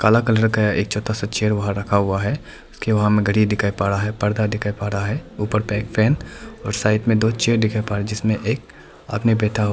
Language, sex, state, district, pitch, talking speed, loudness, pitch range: Hindi, male, Arunachal Pradesh, Lower Dibang Valley, 105 Hz, 245 wpm, -20 LUFS, 105-110 Hz